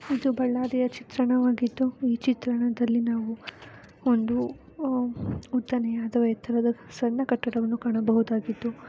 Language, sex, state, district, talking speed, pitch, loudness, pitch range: Kannada, female, Karnataka, Bellary, 90 wpm, 240 Hz, -27 LUFS, 235-255 Hz